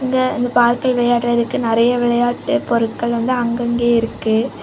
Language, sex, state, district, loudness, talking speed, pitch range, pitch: Tamil, female, Tamil Nadu, Kanyakumari, -17 LUFS, 130 wpm, 235-245 Hz, 240 Hz